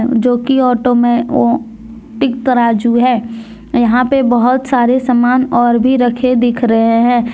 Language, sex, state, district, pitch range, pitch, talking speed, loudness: Hindi, female, Jharkhand, Deoghar, 235-255 Hz, 245 Hz, 140 wpm, -12 LUFS